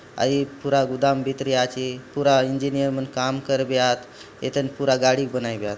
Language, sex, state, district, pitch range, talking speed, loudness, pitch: Halbi, male, Chhattisgarh, Bastar, 125-140 Hz, 195 wpm, -22 LUFS, 135 Hz